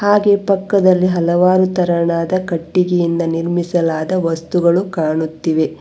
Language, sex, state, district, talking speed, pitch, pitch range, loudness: Kannada, female, Karnataka, Bangalore, 80 wpm, 175 Hz, 165-185 Hz, -15 LUFS